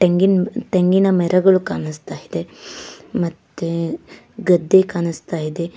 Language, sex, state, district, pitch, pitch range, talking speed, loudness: Kannada, female, Karnataka, Koppal, 180 Hz, 165-190 Hz, 95 wpm, -18 LUFS